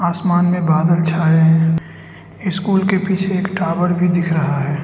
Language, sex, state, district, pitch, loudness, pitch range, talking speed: Hindi, male, Arunachal Pradesh, Lower Dibang Valley, 175 Hz, -16 LUFS, 160-185 Hz, 175 wpm